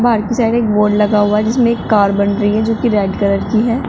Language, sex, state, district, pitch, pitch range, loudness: Hindi, female, Uttar Pradesh, Shamli, 210 Hz, 205-235 Hz, -14 LUFS